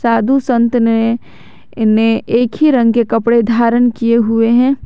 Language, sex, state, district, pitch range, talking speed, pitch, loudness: Hindi, male, Jharkhand, Garhwa, 225-245 Hz, 160 wpm, 235 Hz, -13 LUFS